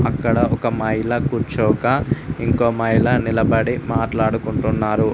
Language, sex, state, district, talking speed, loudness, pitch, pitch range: Telugu, male, Telangana, Mahabubabad, 95 wpm, -19 LUFS, 115 Hz, 110-120 Hz